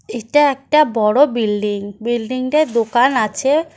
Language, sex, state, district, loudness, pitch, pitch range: Bengali, female, West Bengal, Cooch Behar, -16 LUFS, 240 Hz, 220-290 Hz